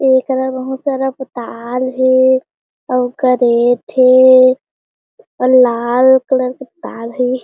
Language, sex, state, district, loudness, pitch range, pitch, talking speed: Chhattisgarhi, female, Chhattisgarh, Jashpur, -13 LUFS, 250-260 Hz, 255 Hz, 105 wpm